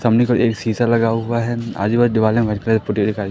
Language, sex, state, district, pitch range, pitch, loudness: Hindi, male, Madhya Pradesh, Katni, 110-120 Hz, 115 Hz, -18 LUFS